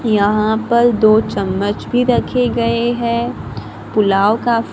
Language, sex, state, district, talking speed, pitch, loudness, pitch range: Hindi, female, Maharashtra, Gondia, 125 wpm, 230 Hz, -15 LUFS, 210-235 Hz